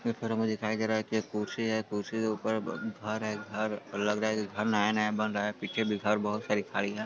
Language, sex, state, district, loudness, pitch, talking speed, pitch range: Hindi, male, Bihar, Sitamarhi, -32 LUFS, 110 Hz, 255 wpm, 105-110 Hz